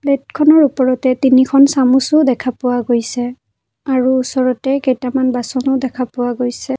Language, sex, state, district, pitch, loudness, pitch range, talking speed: Assamese, female, Assam, Kamrup Metropolitan, 260 Hz, -14 LUFS, 250-270 Hz, 125 wpm